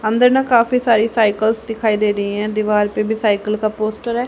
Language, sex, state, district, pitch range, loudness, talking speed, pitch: Hindi, female, Haryana, Rohtak, 215-230 Hz, -17 LUFS, 225 wpm, 220 Hz